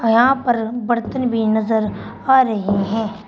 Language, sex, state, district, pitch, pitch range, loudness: Hindi, female, Uttar Pradesh, Shamli, 225 Hz, 220-240 Hz, -18 LUFS